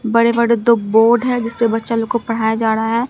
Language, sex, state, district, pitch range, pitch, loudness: Hindi, female, Bihar, Katihar, 225-235 Hz, 230 Hz, -15 LUFS